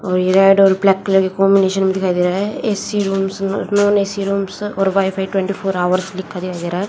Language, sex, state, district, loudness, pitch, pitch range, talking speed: Hindi, female, Haryana, Jhajjar, -16 LUFS, 195 Hz, 190-195 Hz, 250 wpm